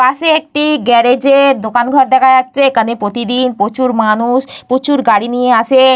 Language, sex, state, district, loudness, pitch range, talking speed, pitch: Bengali, female, West Bengal, Paschim Medinipur, -11 LUFS, 235-275 Hz, 150 wpm, 255 Hz